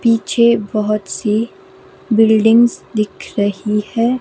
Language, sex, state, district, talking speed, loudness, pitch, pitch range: Hindi, female, Himachal Pradesh, Shimla, 100 wpm, -15 LUFS, 220 Hz, 210-230 Hz